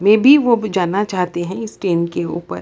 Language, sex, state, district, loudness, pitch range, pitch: Hindi, female, Bihar, Lakhisarai, -16 LUFS, 175-215 Hz, 185 Hz